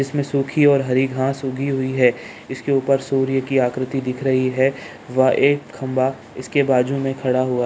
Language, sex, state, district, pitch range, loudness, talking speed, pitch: Hindi, male, Bihar, Jamui, 130-135 Hz, -19 LUFS, 195 wpm, 135 Hz